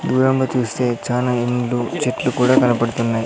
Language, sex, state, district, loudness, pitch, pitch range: Telugu, male, Andhra Pradesh, Sri Satya Sai, -18 LUFS, 125 Hz, 120-125 Hz